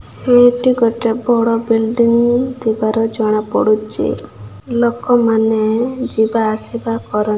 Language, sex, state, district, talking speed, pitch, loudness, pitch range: Odia, female, Odisha, Malkangiri, 115 wpm, 230 Hz, -15 LUFS, 220-240 Hz